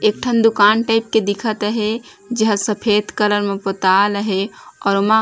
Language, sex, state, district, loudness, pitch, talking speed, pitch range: Chhattisgarhi, female, Chhattisgarh, Raigarh, -17 LUFS, 210 Hz, 195 wpm, 200-220 Hz